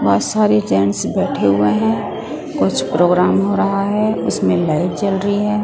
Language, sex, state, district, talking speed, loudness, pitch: Hindi, female, Maharashtra, Gondia, 170 wpm, -16 LUFS, 110 Hz